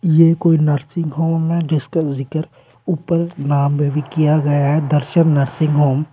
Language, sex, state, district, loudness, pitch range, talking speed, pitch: Hindi, male, Uttar Pradesh, Shamli, -17 LUFS, 145-165 Hz, 175 wpm, 155 Hz